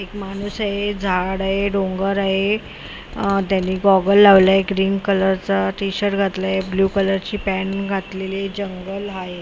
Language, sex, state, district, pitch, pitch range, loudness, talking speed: Marathi, female, Maharashtra, Mumbai Suburban, 195 Hz, 190-200 Hz, -19 LUFS, 145 wpm